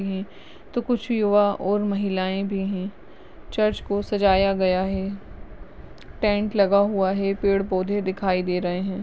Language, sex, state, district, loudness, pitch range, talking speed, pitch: Hindi, female, Uttarakhand, Uttarkashi, -23 LUFS, 190-205 Hz, 155 wpm, 195 Hz